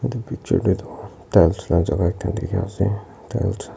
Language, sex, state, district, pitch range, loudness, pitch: Nagamese, male, Nagaland, Kohima, 85-100 Hz, -21 LUFS, 95 Hz